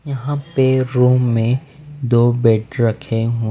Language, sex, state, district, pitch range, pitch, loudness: Hindi, male, Bihar, Patna, 115-135 Hz, 125 Hz, -17 LUFS